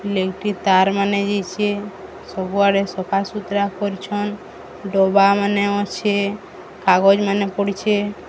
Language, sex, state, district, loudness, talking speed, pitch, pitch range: Odia, female, Odisha, Sambalpur, -19 LUFS, 95 wpm, 200 Hz, 195-205 Hz